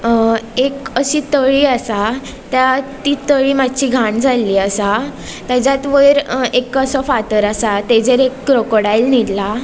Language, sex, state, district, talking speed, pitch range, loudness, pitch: Konkani, female, Goa, North and South Goa, 135 wpm, 225-270 Hz, -14 LUFS, 255 Hz